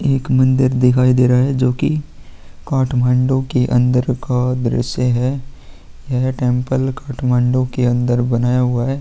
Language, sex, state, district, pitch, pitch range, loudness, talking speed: Hindi, male, Chhattisgarh, Korba, 125 Hz, 125-130 Hz, -16 LUFS, 105 wpm